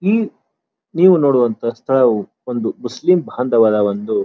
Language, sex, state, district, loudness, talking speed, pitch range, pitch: Kannada, male, Karnataka, Dharwad, -16 LUFS, 125 wpm, 115-180 Hz, 125 Hz